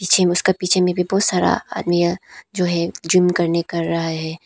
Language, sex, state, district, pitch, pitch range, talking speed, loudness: Hindi, female, Arunachal Pradesh, Papum Pare, 175 Hz, 170-180 Hz, 200 wpm, -18 LUFS